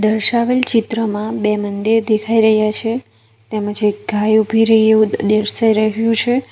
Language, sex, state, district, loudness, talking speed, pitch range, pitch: Gujarati, female, Gujarat, Valsad, -15 LUFS, 155 wpm, 210-225 Hz, 220 Hz